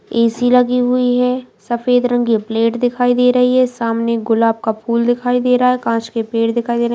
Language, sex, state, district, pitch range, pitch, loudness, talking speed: Hindi, female, Bihar, Purnia, 230-250 Hz, 240 Hz, -15 LUFS, 260 wpm